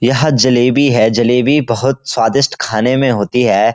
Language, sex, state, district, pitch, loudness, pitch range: Hindi, male, Uttarakhand, Uttarkashi, 125 Hz, -12 LUFS, 120-135 Hz